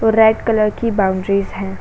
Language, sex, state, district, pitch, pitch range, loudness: Hindi, female, Uttar Pradesh, Jalaun, 210 Hz, 195-220 Hz, -16 LUFS